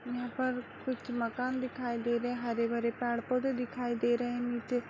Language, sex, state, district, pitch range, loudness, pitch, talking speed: Hindi, female, Bihar, Saharsa, 235-250 Hz, -34 LUFS, 245 Hz, 195 wpm